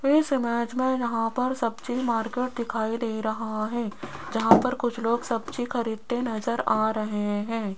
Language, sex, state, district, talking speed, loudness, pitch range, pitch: Hindi, female, Rajasthan, Jaipur, 160 wpm, -26 LUFS, 220-245 Hz, 235 Hz